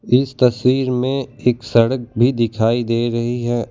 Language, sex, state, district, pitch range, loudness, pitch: Hindi, male, Gujarat, Valsad, 115-130 Hz, -18 LUFS, 120 Hz